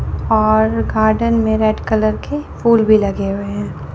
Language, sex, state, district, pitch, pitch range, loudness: Hindi, female, Chandigarh, Chandigarh, 215 Hz, 205-220 Hz, -16 LUFS